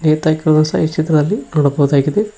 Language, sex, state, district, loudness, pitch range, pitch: Kannada, male, Karnataka, Koppal, -15 LUFS, 150-160 Hz, 155 Hz